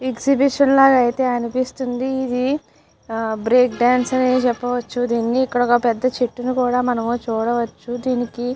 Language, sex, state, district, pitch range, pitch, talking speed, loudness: Telugu, female, Andhra Pradesh, Chittoor, 240-255 Hz, 245 Hz, 120 wpm, -19 LUFS